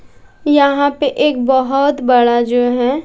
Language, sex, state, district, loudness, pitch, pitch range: Hindi, female, Bihar, West Champaran, -14 LUFS, 265 Hz, 245-285 Hz